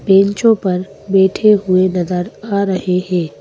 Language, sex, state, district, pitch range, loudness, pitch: Hindi, female, Madhya Pradesh, Bhopal, 180-200 Hz, -15 LUFS, 190 Hz